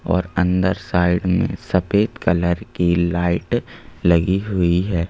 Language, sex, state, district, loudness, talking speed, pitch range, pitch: Hindi, male, Madhya Pradesh, Bhopal, -19 LUFS, 130 wpm, 85-95 Hz, 90 Hz